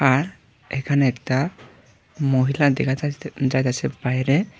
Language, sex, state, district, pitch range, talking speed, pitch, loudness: Bengali, male, Tripura, Unakoti, 130-145 Hz, 105 wpm, 135 Hz, -22 LUFS